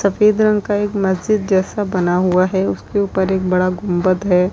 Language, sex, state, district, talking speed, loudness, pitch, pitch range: Hindi, female, Uttar Pradesh, Lalitpur, 200 wpm, -17 LUFS, 190 Hz, 180-205 Hz